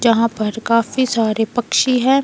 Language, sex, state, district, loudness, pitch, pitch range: Hindi, female, Himachal Pradesh, Shimla, -17 LUFS, 230 Hz, 225-250 Hz